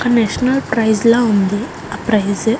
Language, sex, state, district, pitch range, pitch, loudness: Telugu, female, Andhra Pradesh, Guntur, 210-240 Hz, 225 Hz, -15 LUFS